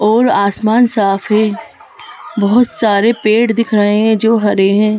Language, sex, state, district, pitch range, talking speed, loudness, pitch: Hindi, female, Madhya Pradesh, Bhopal, 205-230 Hz, 155 wpm, -12 LUFS, 215 Hz